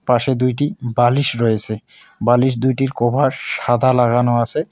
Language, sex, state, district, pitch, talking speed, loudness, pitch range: Bengali, male, West Bengal, Alipurduar, 125 Hz, 125 wpm, -17 LUFS, 120-130 Hz